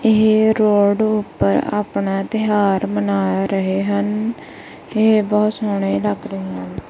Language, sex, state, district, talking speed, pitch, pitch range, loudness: Punjabi, female, Punjab, Kapurthala, 120 wpm, 205 Hz, 195-215 Hz, -18 LUFS